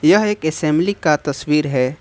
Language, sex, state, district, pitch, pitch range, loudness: Hindi, male, Jharkhand, Ranchi, 155 Hz, 145-195 Hz, -17 LUFS